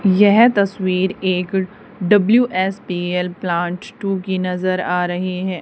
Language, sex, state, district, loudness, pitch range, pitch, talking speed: Hindi, female, Haryana, Charkhi Dadri, -18 LUFS, 180-200 Hz, 185 Hz, 115 wpm